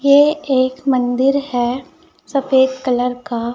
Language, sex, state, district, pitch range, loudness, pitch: Hindi, male, Chhattisgarh, Raipur, 245-275 Hz, -16 LUFS, 260 Hz